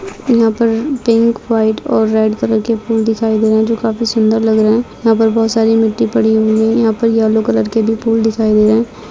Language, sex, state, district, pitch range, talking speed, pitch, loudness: Hindi, female, Uttar Pradesh, Jalaun, 220-230 Hz, 250 wpm, 225 Hz, -13 LUFS